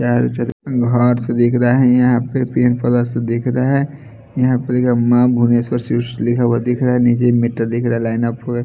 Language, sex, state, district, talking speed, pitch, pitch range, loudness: Hindi, male, Bihar, Kaimur, 215 wpm, 120 Hz, 120-125 Hz, -16 LUFS